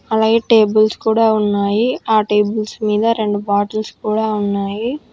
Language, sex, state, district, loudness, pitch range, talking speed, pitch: Telugu, female, Telangana, Hyderabad, -16 LUFS, 210-225 Hz, 130 wpm, 215 Hz